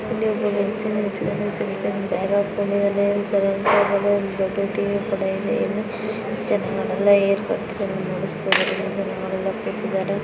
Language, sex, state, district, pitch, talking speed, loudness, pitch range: Kannada, female, Karnataka, Mysore, 200 Hz, 100 wpm, -22 LUFS, 195-205 Hz